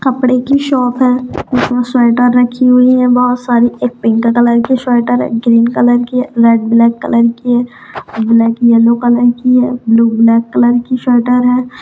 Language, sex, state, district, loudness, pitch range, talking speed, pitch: Kumaoni, female, Uttarakhand, Tehri Garhwal, -11 LUFS, 235-250 Hz, 180 wpm, 245 Hz